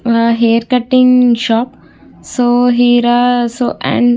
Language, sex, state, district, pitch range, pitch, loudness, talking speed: Telugu, female, Andhra Pradesh, Visakhapatnam, 235-245 Hz, 245 Hz, -11 LUFS, 85 wpm